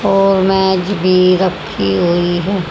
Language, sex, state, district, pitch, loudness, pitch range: Hindi, male, Haryana, Jhajjar, 185 Hz, -13 LUFS, 175-195 Hz